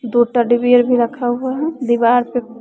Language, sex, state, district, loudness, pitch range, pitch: Hindi, female, Bihar, West Champaran, -15 LUFS, 240-245 Hz, 245 Hz